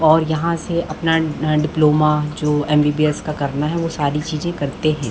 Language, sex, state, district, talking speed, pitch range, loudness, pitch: Hindi, female, Chhattisgarh, Bastar, 175 wpm, 150-160 Hz, -18 LUFS, 155 Hz